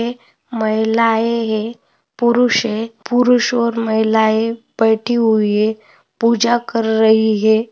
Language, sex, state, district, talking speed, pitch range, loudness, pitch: Hindi, female, Maharashtra, Nagpur, 110 wpm, 220-235 Hz, -16 LUFS, 225 Hz